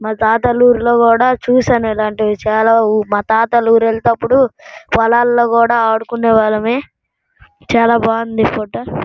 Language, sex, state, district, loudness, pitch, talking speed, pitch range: Telugu, female, Andhra Pradesh, Srikakulam, -13 LUFS, 230 Hz, 130 wpm, 220-235 Hz